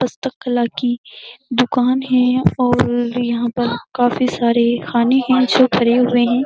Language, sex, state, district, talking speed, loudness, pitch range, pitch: Hindi, female, Uttar Pradesh, Jyotiba Phule Nagar, 150 wpm, -16 LUFS, 240-255 Hz, 245 Hz